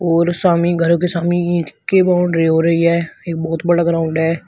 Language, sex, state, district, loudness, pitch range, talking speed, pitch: Hindi, male, Uttar Pradesh, Shamli, -16 LUFS, 165-175 Hz, 215 wpm, 170 Hz